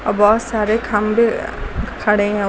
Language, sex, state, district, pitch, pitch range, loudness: Hindi, female, Uttar Pradesh, Lucknow, 215 Hz, 210-225 Hz, -17 LUFS